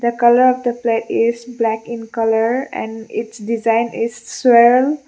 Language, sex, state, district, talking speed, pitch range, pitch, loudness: English, female, Mizoram, Aizawl, 140 wpm, 225-245 Hz, 235 Hz, -16 LUFS